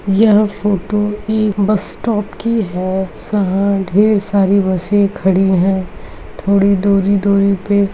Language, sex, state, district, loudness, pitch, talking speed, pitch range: Hindi, female, Uttar Pradesh, Muzaffarnagar, -15 LUFS, 200 Hz, 115 wpm, 195-210 Hz